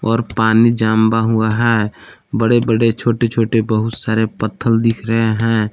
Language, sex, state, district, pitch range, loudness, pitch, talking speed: Hindi, male, Jharkhand, Palamu, 110-115 Hz, -15 LUFS, 115 Hz, 155 wpm